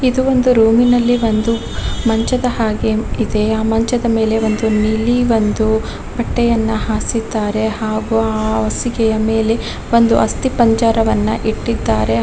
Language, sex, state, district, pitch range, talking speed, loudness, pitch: Kannada, female, Karnataka, Chamarajanagar, 220-235 Hz, 105 wpm, -15 LUFS, 225 Hz